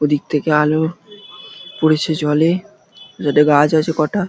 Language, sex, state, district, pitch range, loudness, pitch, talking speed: Bengali, male, West Bengal, Dakshin Dinajpur, 150-180 Hz, -16 LUFS, 155 Hz, 125 wpm